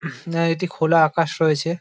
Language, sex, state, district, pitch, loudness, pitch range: Bengali, male, West Bengal, Dakshin Dinajpur, 165 Hz, -20 LUFS, 160-170 Hz